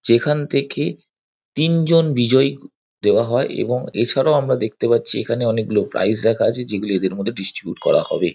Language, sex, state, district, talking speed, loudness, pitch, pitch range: Bengali, male, West Bengal, Dakshin Dinajpur, 160 wpm, -19 LUFS, 120 Hz, 110-140 Hz